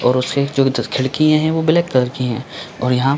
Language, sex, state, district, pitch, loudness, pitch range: Hindi, male, Chhattisgarh, Bilaspur, 130 Hz, -17 LUFS, 125-155 Hz